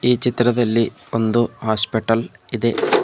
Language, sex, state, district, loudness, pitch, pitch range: Kannada, male, Karnataka, Bidar, -19 LUFS, 115 Hz, 115-120 Hz